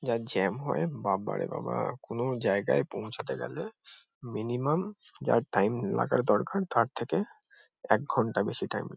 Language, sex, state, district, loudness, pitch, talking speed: Bengali, male, West Bengal, Kolkata, -30 LUFS, 130 Hz, 145 wpm